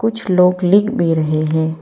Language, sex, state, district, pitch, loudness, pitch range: Hindi, female, Arunachal Pradesh, Papum Pare, 180 Hz, -15 LUFS, 160-200 Hz